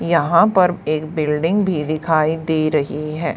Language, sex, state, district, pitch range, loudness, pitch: Hindi, female, Haryana, Charkhi Dadri, 155-170 Hz, -18 LUFS, 160 Hz